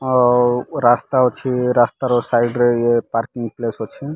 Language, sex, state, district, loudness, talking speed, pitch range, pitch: Odia, male, Odisha, Malkangiri, -17 LUFS, 145 wpm, 120-125 Hz, 120 Hz